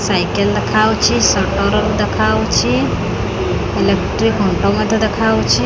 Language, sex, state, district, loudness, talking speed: Odia, female, Odisha, Khordha, -15 LUFS, 95 wpm